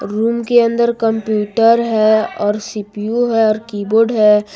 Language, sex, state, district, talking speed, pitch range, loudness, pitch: Hindi, female, Jharkhand, Garhwa, 145 wpm, 210-230 Hz, -15 LUFS, 220 Hz